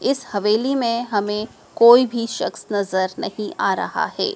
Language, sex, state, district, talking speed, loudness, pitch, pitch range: Hindi, female, Madhya Pradesh, Dhar, 165 wpm, -20 LUFS, 230 Hz, 205-245 Hz